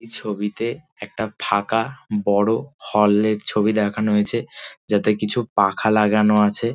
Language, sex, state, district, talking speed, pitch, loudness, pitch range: Bengali, male, West Bengal, Dakshin Dinajpur, 140 wpm, 105 Hz, -20 LUFS, 105-115 Hz